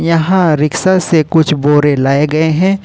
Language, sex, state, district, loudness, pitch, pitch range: Hindi, male, Jharkhand, Ranchi, -11 LUFS, 160 Hz, 150-180 Hz